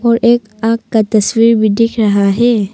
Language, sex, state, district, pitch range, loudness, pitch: Hindi, female, Arunachal Pradesh, Papum Pare, 215-230 Hz, -12 LUFS, 225 Hz